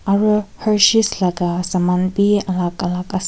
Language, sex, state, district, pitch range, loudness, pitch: Nagamese, female, Nagaland, Kohima, 180-205 Hz, -17 LUFS, 190 Hz